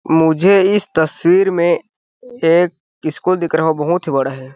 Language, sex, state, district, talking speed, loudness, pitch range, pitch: Hindi, male, Chhattisgarh, Balrampur, 170 wpm, -15 LUFS, 160-185 Hz, 170 Hz